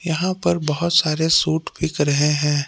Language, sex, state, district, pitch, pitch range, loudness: Hindi, male, Jharkhand, Palamu, 160 Hz, 150-170 Hz, -19 LUFS